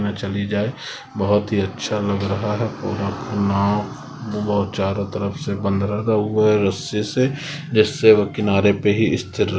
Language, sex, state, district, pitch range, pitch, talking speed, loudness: Hindi, male, West Bengal, Kolkata, 100-110 Hz, 105 Hz, 170 wpm, -20 LUFS